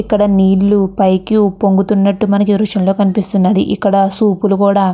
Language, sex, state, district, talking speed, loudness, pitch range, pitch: Telugu, female, Andhra Pradesh, Guntur, 170 wpm, -12 LUFS, 195-205 Hz, 200 Hz